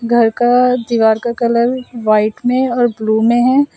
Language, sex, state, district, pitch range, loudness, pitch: Hindi, male, Assam, Sonitpur, 225-250 Hz, -14 LUFS, 240 Hz